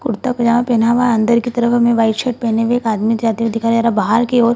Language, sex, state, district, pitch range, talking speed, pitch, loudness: Hindi, female, Bihar, Purnia, 225-240 Hz, 315 wpm, 235 Hz, -15 LUFS